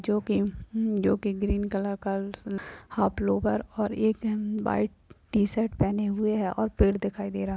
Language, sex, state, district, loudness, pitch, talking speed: Hindi, female, Bihar, Purnia, -28 LUFS, 200 Hz, 150 wpm